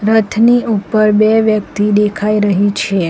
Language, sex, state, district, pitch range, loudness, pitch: Gujarati, female, Gujarat, Valsad, 205-220 Hz, -12 LUFS, 210 Hz